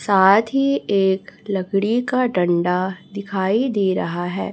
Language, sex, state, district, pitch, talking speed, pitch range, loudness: Hindi, female, Chhattisgarh, Raipur, 195 Hz, 135 wpm, 190-220 Hz, -19 LUFS